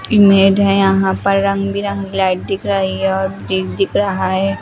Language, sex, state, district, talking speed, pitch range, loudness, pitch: Hindi, female, Bihar, West Champaran, 170 wpm, 190-195 Hz, -15 LUFS, 195 Hz